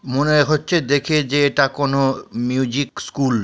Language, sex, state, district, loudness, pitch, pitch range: Bengali, female, West Bengal, Purulia, -18 LUFS, 140 Hz, 135-150 Hz